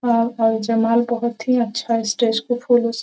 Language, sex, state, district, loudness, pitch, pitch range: Hindi, female, Bihar, Gopalganj, -19 LUFS, 230 Hz, 225-240 Hz